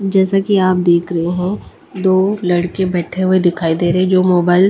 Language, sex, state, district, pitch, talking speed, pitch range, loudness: Hindi, female, Delhi, New Delhi, 185 Hz, 215 wpm, 175-190 Hz, -15 LUFS